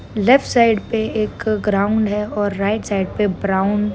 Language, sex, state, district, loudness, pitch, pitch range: Hindi, female, Rajasthan, Nagaur, -18 LUFS, 210 Hz, 200-220 Hz